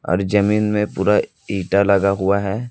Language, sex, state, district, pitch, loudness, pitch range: Hindi, male, Chhattisgarh, Raipur, 100 Hz, -18 LUFS, 100-105 Hz